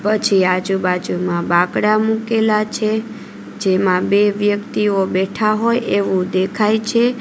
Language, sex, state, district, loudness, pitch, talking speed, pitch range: Gujarati, female, Gujarat, Valsad, -17 LUFS, 205 Hz, 110 wpm, 190-215 Hz